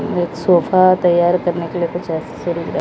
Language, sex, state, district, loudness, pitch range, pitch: Hindi, female, Odisha, Malkangiri, -16 LUFS, 170-180 Hz, 175 Hz